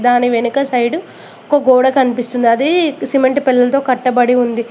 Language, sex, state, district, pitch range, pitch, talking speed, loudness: Telugu, female, Telangana, Mahabubabad, 245-270 Hz, 250 Hz, 140 wpm, -13 LUFS